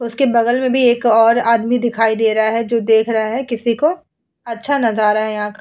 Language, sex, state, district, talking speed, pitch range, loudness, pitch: Hindi, female, Uttar Pradesh, Muzaffarnagar, 235 wpm, 220-245 Hz, -15 LUFS, 230 Hz